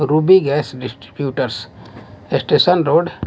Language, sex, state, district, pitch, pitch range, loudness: Hindi, male, Bihar, West Champaran, 140 Hz, 125-150 Hz, -16 LUFS